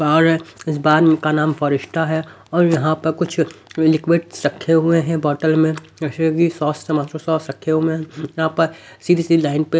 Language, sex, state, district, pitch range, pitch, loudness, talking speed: Hindi, male, Haryana, Rohtak, 155-165 Hz, 160 Hz, -18 LUFS, 190 wpm